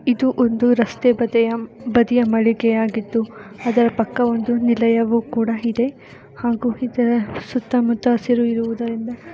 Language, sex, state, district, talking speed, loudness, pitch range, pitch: Kannada, female, Karnataka, Shimoga, 120 wpm, -19 LUFS, 230-245 Hz, 235 Hz